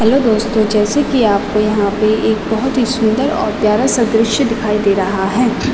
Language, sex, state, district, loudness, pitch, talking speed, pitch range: Hindi, female, Uttarakhand, Tehri Garhwal, -14 LUFS, 220 Hz, 200 wpm, 210-245 Hz